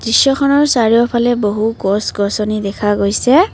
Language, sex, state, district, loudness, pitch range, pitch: Assamese, female, Assam, Kamrup Metropolitan, -14 LUFS, 205-245 Hz, 225 Hz